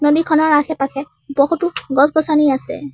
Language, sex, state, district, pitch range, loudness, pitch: Assamese, female, Assam, Sonitpur, 280-310 Hz, -16 LUFS, 295 Hz